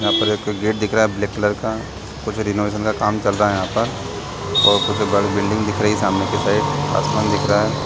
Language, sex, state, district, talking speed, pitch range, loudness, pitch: Hindi, male, Chhattisgarh, Raigarh, 245 wpm, 100-110 Hz, -19 LUFS, 105 Hz